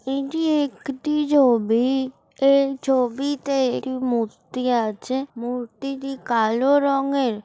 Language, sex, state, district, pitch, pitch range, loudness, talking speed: Bengali, female, West Bengal, Kolkata, 265 Hz, 245-275 Hz, -22 LUFS, 95 wpm